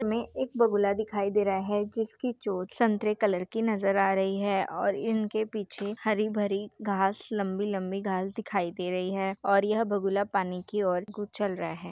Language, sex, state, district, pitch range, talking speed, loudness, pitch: Hindi, female, Bihar, Saharsa, 195-215 Hz, 195 wpm, -29 LUFS, 205 Hz